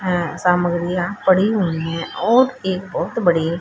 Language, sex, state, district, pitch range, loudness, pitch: Hindi, female, Haryana, Charkhi Dadri, 175-190 Hz, -19 LUFS, 180 Hz